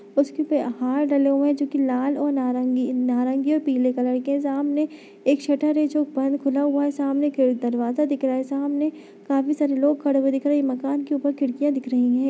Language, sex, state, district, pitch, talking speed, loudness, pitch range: Hindi, female, Bihar, Bhagalpur, 280 Hz, 205 wpm, -22 LUFS, 260-290 Hz